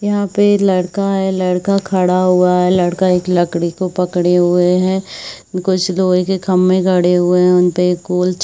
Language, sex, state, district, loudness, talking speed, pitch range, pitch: Hindi, female, Chhattisgarh, Bilaspur, -14 LUFS, 175 wpm, 180-190 Hz, 180 Hz